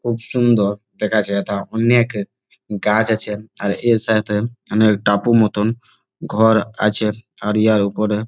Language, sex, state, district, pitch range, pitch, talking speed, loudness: Bengali, male, West Bengal, Jalpaiguri, 105-110 Hz, 110 Hz, 125 wpm, -18 LUFS